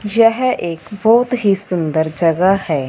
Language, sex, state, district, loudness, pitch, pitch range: Hindi, female, Punjab, Fazilka, -15 LUFS, 195 Hz, 165-225 Hz